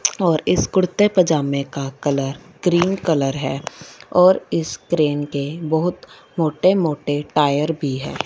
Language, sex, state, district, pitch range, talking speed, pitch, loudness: Hindi, female, Punjab, Fazilka, 145-175 Hz, 140 wpm, 155 Hz, -19 LUFS